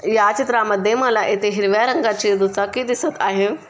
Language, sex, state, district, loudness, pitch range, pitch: Marathi, female, Maharashtra, Chandrapur, -18 LUFS, 205-240 Hz, 210 Hz